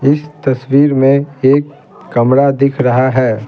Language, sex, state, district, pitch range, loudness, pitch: Hindi, male, Bihar, Patna, 130-145 Hz, -12 LUFS, 140 Hz